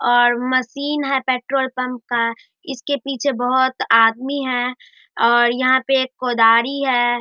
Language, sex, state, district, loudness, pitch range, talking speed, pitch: Hindi, male, Bihar, Darbhanga, -18 LUFS, 240-270 Hz, 140 wpm, 255 Hz